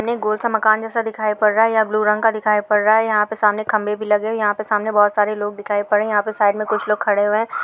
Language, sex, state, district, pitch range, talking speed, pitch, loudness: Hindi, female, Maharashtra, Chandrapur, 210-220 Hz, 320 wpm, 215 Hz, -18 LUFS